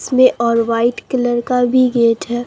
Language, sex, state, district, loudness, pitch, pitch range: Hindi, male, Bihar, Katihar, -15 LUFS, 240 Hz, 235-250 Hz